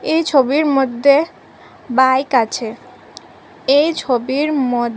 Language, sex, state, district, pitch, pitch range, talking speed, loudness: Bengali, female, Assam, Hailakandi, 270 Hz, 250-295 Hz, 95 wpm, -16 LUFS